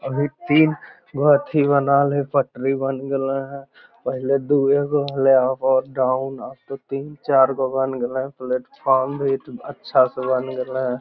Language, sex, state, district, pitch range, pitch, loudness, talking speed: Magahi, male, Bihar, Lakhisarai, 130-140 Hz, 135 Hz, -20 LUFS, 170 wpm